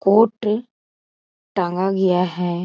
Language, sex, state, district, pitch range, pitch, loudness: Hindi, female, Bihar, East Champaran, 180-215 Hz, 190 Hz, -20 LUFS